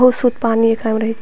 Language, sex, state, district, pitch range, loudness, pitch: Maithili, female, Bihar, Purnia, 225-245 Hz, -16 LUFS, 225 Hz